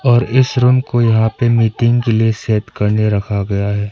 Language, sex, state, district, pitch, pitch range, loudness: Hindi, male, Arunachal Pradesh, Papum Pare, 115 Hz, 105-120 Hz, -14 LUFS